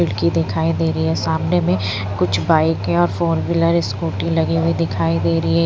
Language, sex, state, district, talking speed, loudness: Hindi, female, Punjab, Pathankot, 210 wpm, -18 LUFS